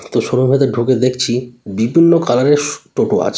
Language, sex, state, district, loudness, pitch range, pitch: Bengali, male, West Bengal, North 24 Parganas, -14 LUFS, 120-140 Hz, 130 Hz